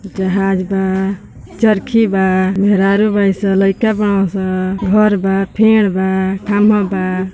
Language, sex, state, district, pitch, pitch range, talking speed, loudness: Bhojpuri, female, Uttar Pradesh, Ghazipur, 195 Hz, 190-205 Hz, 140 wpm, -14 LUFS